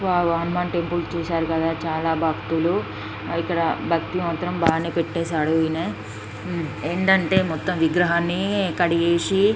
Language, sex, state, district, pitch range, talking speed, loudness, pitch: Telugu, female, Andhra Pradesh, Srikakulam, 160-175 Hz, 115 wpm, -22 LUFS, 170 Hz